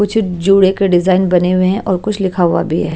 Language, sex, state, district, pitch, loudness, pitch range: Hindi, female, Odisha, Malkangiri, 190 Hz, -13 LUFS, 180-195 Hz